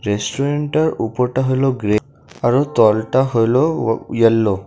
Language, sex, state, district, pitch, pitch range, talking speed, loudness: Bengali, male, Assam, Kamrup Metropolitan, 125 Hz, 110-135 Hz, 115 wpm, -17 LUFS